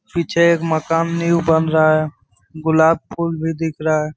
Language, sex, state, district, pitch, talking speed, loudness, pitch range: Hindi, male, Jharkhand, Sahebganj, 160 Hz, 185 wpm, -17 LUFS, 155-170 Hz